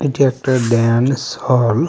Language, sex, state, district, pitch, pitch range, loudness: Bengali, male, West Bengal, Alipurduar, 130 Hz, 115-135 Hz, -16 LUFS